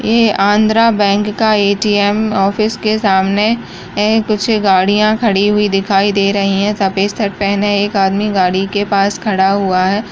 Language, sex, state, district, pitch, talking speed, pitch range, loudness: Kumaoni, female, Uttarakhand, Uttarkashi, 205 Hz, 165 wpm, 195-215 Hz, -13 LUFS